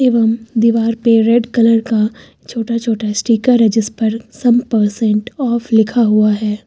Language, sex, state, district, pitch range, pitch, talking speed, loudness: Hindi, female, Uttar Pradesh, Lucknow, 220-235 Hz, 225 Hz, 160 wpm, -14 LUFS